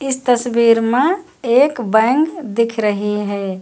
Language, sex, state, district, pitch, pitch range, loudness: Hindi, female, Uttar Pradesh, Lucknow, 235 Hz, 220-265 Hz, -16 LUFS